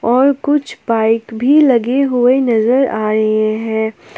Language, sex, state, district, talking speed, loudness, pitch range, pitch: Hindi, female, Jharkhand, Palamu, 130 wpm, -14 LUFS, 220-265 Hz, 235 Hz